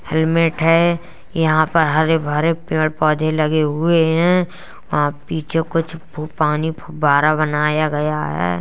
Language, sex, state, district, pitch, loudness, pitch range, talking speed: Hindi, female, Uttar Pradesh, Jalaun, 155 Hz, -17 LUFS, 150-165 Hz, 125 wpm